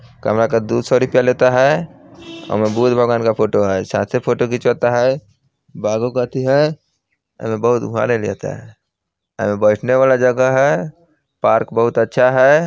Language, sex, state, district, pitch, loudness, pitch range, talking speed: Bajjika, male, Bihar, Vaishali, 120 Hz, -16 LUFS, 110-130 Hz, 135 wpm